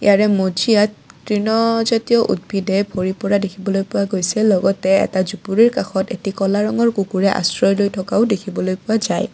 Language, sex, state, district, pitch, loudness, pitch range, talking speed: Assamese, female, Assam, Kamrup Metropolitan, 200 Hz, -17 LUFS, 190-215 Hz, 150 wpm